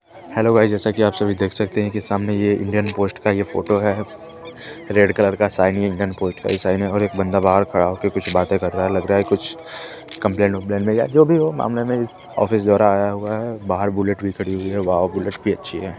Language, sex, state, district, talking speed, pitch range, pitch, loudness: Hindi, male, Chandigarh, Chandigarh, 260 wpm, 95-105 Hz, 100 Hz, -19 LUFS